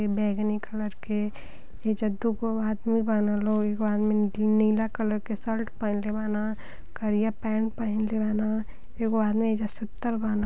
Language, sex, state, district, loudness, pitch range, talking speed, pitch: Bhojpuri, female, Uttar Pradesh, Deoria, -27 LUFS, 210-220 Hz, 160 wpm, 215 Hz